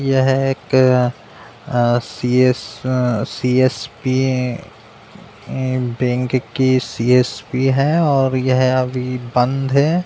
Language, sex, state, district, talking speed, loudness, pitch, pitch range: Hindi, male, Uttar Pradesh, Deoria, 100 wpm, -17 LUFS, 130 Hz, 125-130 Hz